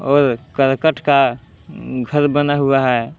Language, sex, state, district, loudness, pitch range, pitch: Hindi, male, Jharkhand, Palamu, -16 LUFS, 125-145 Hz, 135 Hz